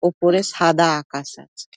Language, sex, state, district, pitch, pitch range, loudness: Bengali, female, West Bengal, Dakshin Dinajpur, 170 Hz, 150-175 Hz, -18 LUFS